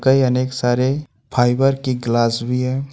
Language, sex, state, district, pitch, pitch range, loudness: Hindi, male, Jharkhand, Ranchi, 130 Hz, 120-135 Hz, -18 LUFS